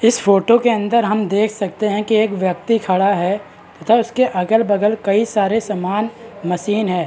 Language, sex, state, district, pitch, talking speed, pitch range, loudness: Hindi, male, Bihar, Madhepura, 210 Hz, 195 wpm, 195-225 Hz, -17 LUFS